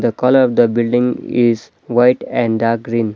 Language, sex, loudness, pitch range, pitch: English, male, -15 LUFS, 115-125 Hz, 120 Hz